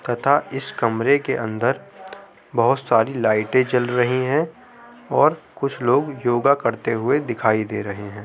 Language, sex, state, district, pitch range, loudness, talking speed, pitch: Hindi, male, Uttar Pradesh, Muzaffarnagar, 115-140 Hz, -20 LUFS, 155 wpm, 120 Hz